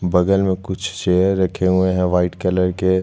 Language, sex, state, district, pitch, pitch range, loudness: Hindi, male, Chhattisgarh, Jashpur, 95 Hz, 90-95 Hz, -18 LUFS